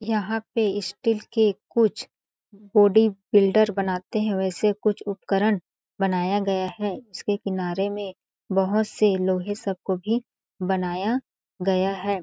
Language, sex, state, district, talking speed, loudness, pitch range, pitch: Hindi, female, Chhattisgarh, Balrampur, 130 wpm, -24 LUFS, 190-215 Hz, 200 Hz